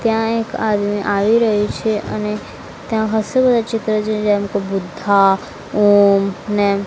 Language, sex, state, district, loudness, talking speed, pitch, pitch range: Gujarati, female, Gujarat, Gandhinagar, -17 LUFS, 140 wpm, 210 Hz, 200-225 Hz